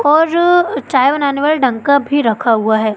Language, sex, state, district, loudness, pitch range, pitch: Hindi, female, Madhya Pradesh, Katni, -13 LUFS, 235-300 Hz, 280 Hz